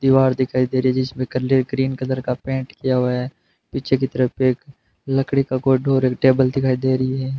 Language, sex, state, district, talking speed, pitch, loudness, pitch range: Hindi, male, Rajasthan, Bikaner, 220 wpm, 130 Hz, -20 LUFS, 130-135 Hz